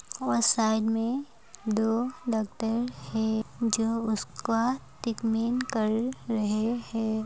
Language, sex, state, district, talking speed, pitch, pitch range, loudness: Hindi, female, Rajasthan, Churu, 100 wpm, 225 Hz, 220-235 Hz, -28 LUFS